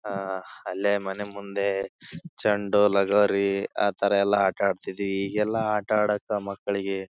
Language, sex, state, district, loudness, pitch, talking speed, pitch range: Kannada, male, Karnataka, Bijapur, -25 LUFS, 100 Hz, 135 wpm, 100-105 Hz